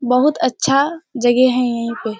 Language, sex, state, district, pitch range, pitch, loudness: Hindi, female, Bihar, Kishanganj, 240-275 Hz, 250 Hz, -17 LUFS